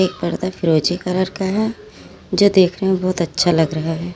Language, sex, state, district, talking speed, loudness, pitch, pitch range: Hindi, female, Uttar Pradesh, Lalitpur, 200 wpm, -18 LUFS, 185 Hz, 170-190 Hz